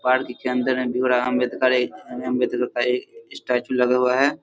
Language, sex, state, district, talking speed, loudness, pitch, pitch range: Hindi, male, Bihar, Darbhanga, 205 wpm, -22 LUFS, 125 Hz, 125-130 Hz